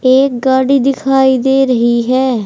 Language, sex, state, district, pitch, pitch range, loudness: Hindi, female, Haryana, Jhajjar, 260 Hz, 255-270 Hz, -11 LUFS